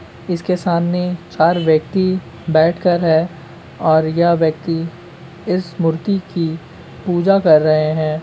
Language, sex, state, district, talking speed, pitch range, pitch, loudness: Hindi, male, West Bengal, Kolkata, 115 wpm, 160-180 Hz, 165 Hz, -16 LUFS